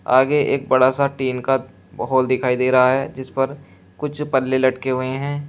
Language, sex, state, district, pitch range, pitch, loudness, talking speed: Hindi, male, Uttar Pradesh, Shamli, 130-135 Hz, 130 Hz, -19 LUFS, 195 wpm